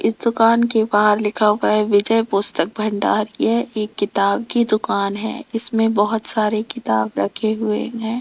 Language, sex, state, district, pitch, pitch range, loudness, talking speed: Hindi, female, Rajasthan, Jaipur, 215 Hz, 205-225 Hz, -18 LUFS, 170 wpm